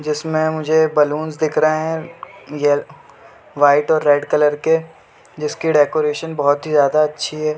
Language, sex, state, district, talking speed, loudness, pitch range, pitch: Hindi, male, Jharkhand, Sahebganj, 150 wpm, -17 LUFS, 150-155 Hz, 155 Hz